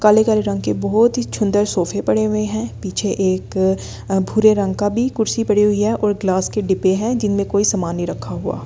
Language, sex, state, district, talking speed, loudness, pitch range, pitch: Hindi, female, Delhi, New Delhi, 230 wpm, -18 LUFS, 190-215 Hz, 200 Hz